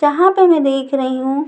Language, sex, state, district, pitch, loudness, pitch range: Hindi, female, Maharashtra, Mumbai Suburban, 285 Hz, -14 LUFS, 270-335 Hz